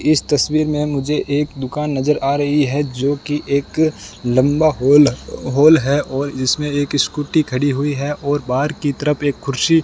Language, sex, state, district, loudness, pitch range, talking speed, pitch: Hindi, male, Rajasthan, Bikaner, -17 LUFS, 140-150 Hz, 175 wpm, 145 Hz